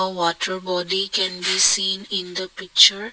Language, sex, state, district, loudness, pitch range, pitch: English, male, Assam, Kamrup Metropolitan, -19 LUFS, 180-195 Hz, 185 Hz